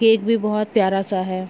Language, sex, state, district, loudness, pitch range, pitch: Hindi, female, Uttar Pradesh, Gorakhpur, -20 LUFS, 190-225 Hz, 210 Hz